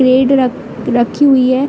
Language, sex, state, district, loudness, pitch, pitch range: Hindi, female, Uttar Pradesh, Hamirpur, -12 LUFS, 255 Hz, 245-270 Hz